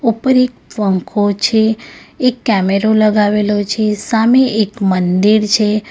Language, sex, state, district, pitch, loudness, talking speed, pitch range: Gujarati, female, Gujarat, Valsad, 215 Hz, -13 LUFS, 120 wpm, 205-230 Hz